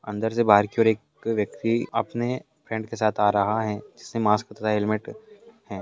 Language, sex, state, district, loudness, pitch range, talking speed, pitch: Hindi, male, Chhattisgarh, Bastar, -24 LUFS, 105-115 Hz, 195 wpm, 110 Hz